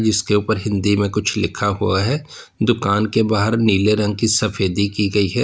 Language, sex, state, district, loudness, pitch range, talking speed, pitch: Hindi, male, Uttar Pradesh, Lalitpur, -18 LUFS, 100-110 Hz, 200 wpm, 105 Hz